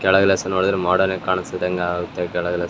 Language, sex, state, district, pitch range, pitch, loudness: Kannada, male, Karnataka, Raichur, 90-95 Hz, 90 Hz, -20 LUFS